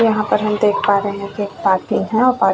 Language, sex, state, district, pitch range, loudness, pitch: Hindi, female, Goa, North and South Goa, 200-220 Hz, -17 LUFS, 205 Hz